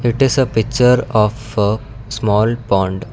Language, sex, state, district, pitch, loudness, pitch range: English, male, Karnataka, Bangalore, 115 Hz, -16 LUFS, 105-125 Hz